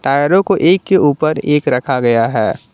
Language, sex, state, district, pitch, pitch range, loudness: Hindi, male, Jharkhand, Garhwa, 145 Hz, 130-185 Hz, -13 LUFS